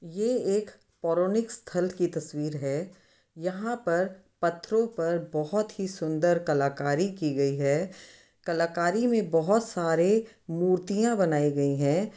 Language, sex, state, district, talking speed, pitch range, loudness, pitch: Hindi, male, Uttar Pradesh, Muzaffarnagar, 130 wpm, 160-205 Hz, -27 LUFS, 175 Hz